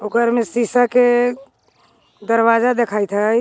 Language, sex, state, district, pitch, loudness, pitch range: Magahi, female, Jharkhand, Palamu, 235 Hz, -16 LUFS, 230-245 Hz